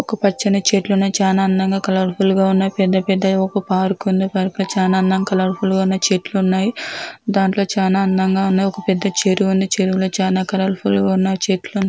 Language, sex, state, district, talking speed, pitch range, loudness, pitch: Telugu, female, Andhra Pradesh, Anantapur, 155 wpm, 190-195 Hz, -17 LUFS, 190 Hz